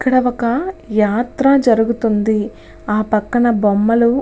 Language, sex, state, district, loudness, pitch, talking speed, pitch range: Telugu, female, Andhra Pradesh, Visakhapatnam, -16 LUFS, 235 Hz, 100 wpm, 215-245 Hz